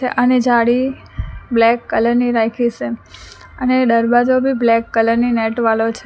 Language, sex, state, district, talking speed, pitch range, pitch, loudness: Gujarati, female, Gujarat, Valsad, 160 wpm, 225-245 Hz, 235 Hz, -15 LUFS